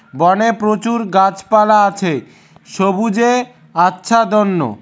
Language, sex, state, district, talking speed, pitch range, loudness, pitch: Bengali, male, West Bengal, Cooch Behar, 85 wpm, 185-230 Hz, -14 LUFS, 205 Hz